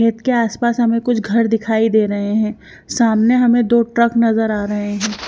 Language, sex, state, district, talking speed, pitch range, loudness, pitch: Hindi, female, Haryana, Jhajjar, 205 wpm, 215-235 Hz, -16 LUFS, 225 Hz